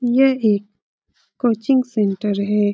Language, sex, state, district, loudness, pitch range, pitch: Hindi, female, Uttar Pradesh, Etah, -19 LUFS, 205-250 Hz, 210 Hz